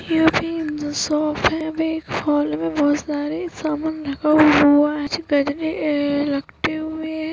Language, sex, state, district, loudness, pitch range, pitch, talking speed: Hindi, female, Uttarakhand, Uttarkashi, -20 LUFS, 290-315 Hz, 300 Hz, 145 wpm